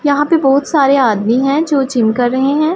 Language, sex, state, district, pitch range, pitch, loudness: Hindi, female, Punjab, Pathankot, 250-290 Hz, 275 Hz, -13 LUFS